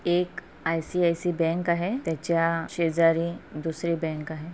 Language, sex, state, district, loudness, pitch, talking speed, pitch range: Marathi, female, Maharashtra, Pune, -26 LUFS, 165 Hz, 120 wpm, 165-170 Hz